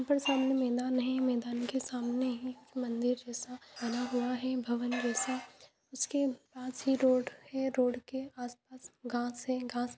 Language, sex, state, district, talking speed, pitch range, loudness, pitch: Hindi, female, Jharkhand, Jamtara, 160 wpm, 245-260 Hz, -34 LUFS, 255 Hz